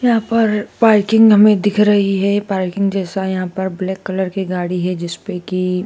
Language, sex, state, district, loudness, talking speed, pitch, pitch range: Hindi, female, Madhya Pradesh, Dhar, -16 LUFS, 185 wpm, 195 Hz, 185-210 Hz